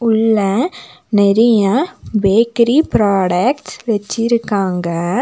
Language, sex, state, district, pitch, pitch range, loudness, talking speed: Tamil, female, Tamil Nadu, Nilgiris, 220 Hz, 200-235 Hz, -15 LUFS, 55 wpm